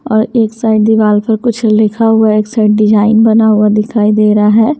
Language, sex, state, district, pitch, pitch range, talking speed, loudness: Hindi, female, Haryana, Charkhi Dadri, 220 Hz, 210-225 Hz, 225 wpm, -10 LUFS